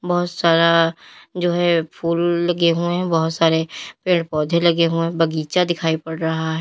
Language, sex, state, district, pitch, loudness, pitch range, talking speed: Hindi, female, Uttar Pradesh, Lalitpur, 170 Hz, -19 LUFS, 160-175 Hz, 170 wpm